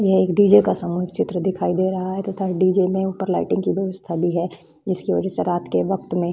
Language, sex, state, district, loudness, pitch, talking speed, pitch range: Hindi, female, Bihar, Vaishali, -21 LUFS, 185 Hz, 255 wpm, 175-190 Hz